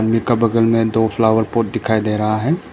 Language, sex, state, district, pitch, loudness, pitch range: Hindi, male, Arunachal Pradesh, Papum Pare, 115 Hz, -17 LUFS, 110-115 Hz